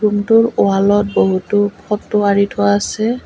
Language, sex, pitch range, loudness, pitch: Assamese, female, 200-215 Hz, -15 LUFS, 205 Hz